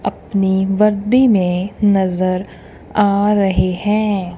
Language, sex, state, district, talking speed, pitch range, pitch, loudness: Hindi, female, Punjab, Kapurthala, 95 wpm, 185-210 Hz, 200 Hz, -16 LUFS